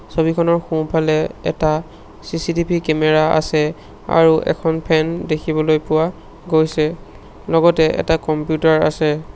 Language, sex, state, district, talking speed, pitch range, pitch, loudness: Assamese, male, Assam, Sonitpur, 105 wpm, 155-165 Hz, 160 Hz, -17 LUFS